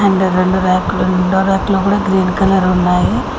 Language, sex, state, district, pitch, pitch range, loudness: Telugu, female, Telangana, Mahabubabad, 190 Hz, 185-195 Hz, -13 LUFS